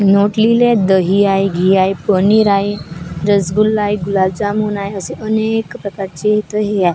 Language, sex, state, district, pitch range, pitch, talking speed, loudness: Marathi, female, Maharashtra, Gondia, 190-210 Hz, 200 Hz, 145 wpm, -14 LUFS